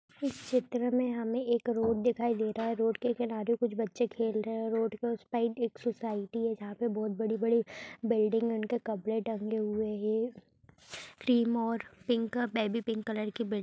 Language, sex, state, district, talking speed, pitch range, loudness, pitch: Hindi, female, Chhattisgarh, Raigarh, 205 wpm, 220-235 Hz, -32 LUFS, 230 Hz